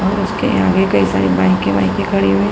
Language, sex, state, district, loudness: Hindi, female, Uttar Pradesh, Hamirpur, -15 LUFS